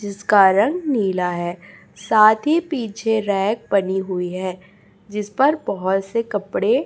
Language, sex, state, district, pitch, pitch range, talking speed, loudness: Hindi, female, Chhattisgarh, Raipur, 200 Hz, 190-225 Hz, 140 wpm, -19 LUFS